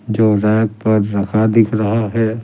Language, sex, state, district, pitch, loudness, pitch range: Hindi, male, Bihar, Patna, 110 Hz, -15 LUFS, 105-110 Hz